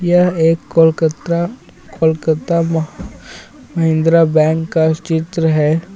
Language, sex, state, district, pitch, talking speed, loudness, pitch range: Hindi, male, Jharkhand, Ranchi, 165 Hz, 100 wpm, -15 LUFS, 160-170 Hz